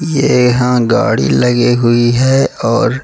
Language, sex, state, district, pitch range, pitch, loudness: Hindi, male, Bihar, Gaya, 120-130 Hz, 125 Hz, -11 LUFS